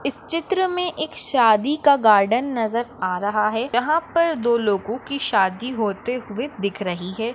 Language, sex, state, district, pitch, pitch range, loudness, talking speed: Hindi, female, Maharashtra, Pune, 235 Hz, 210-285 Hz, -21 LUFS, 180 wpm